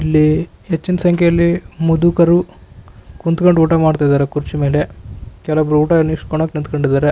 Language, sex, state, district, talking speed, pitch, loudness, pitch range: Kannada, male, Karnataka, Raichur, 110 wpm, 155 Hz, -15 LUFS, 145-170 Hz